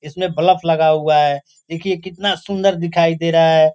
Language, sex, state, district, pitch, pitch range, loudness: Hindi, male, Bihar, Gopalganj, 165 Hz, 155-185 Hz, -16 LUFS